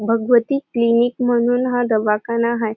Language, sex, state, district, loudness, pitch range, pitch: Marathi, female, Maharashtra, Dhule, -18 LUFS, 230-245 Hz, 235 Hz